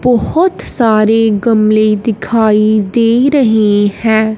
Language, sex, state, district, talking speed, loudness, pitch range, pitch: Hindi, female, Punjab, Fazilka, 95 wpm, -11 LUFS, 215-230 Hz, 220 Hz